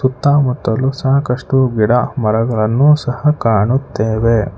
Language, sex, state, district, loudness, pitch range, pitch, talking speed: Kannada, male, Karnataka, Bangalore, -14 LUFS, 110-135 Hz, 125 Hz, 80 wpm